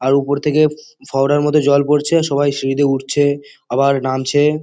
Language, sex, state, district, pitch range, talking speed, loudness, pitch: Bengali, male, West Bengal, Kolkata, 135-150 Hz, 170 wpm, -16 LUFS, 145 Hz